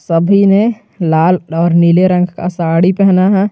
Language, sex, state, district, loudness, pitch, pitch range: Hindi, male, Jharkhand, Garhwa, -11 LUFS, 180 Hz, 170-195 Hz